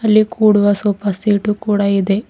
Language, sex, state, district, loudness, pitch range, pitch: Kannada, female, Karnataka, Bidar, -15 LUFS, 200-215 Hz, 205 Hz